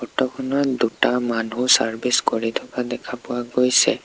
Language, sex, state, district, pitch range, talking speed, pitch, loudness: Assamese, male, Assam, Sonitpur, 115-130 Hz, 150 wpm, 125 Hz, -21 LUFS